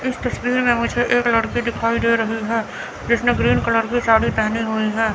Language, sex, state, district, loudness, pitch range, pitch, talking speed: Hindi, female, Chandigarh, Chandigarh, -19 LUFS, 225-240 Hz, 230 Hz, 210 wpm